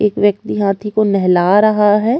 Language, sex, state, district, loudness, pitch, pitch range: Hindi, female, Chhattisgarh, Kabirdham, -14 LUFS, 205 Hz, 200-210 Hz